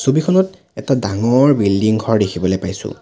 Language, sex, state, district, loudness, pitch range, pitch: Assamese, male, Assam, Sonitpur, -16 LUFS, 100-140 Hz, 115 Hz